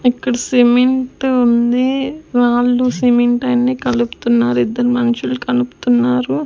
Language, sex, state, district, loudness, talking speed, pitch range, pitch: Telugu, female, Andhra Pradesh, Sri Satya Sai, -15 LUFS, 95 wpm, 150-250 Hz, 245 Hz